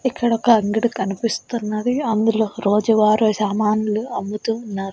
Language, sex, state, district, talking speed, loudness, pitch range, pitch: Telugu, female, Andhra Pradesh, Annamaya, 110 wpm, -19 LUFS, 210-230 Hz, 220 Hz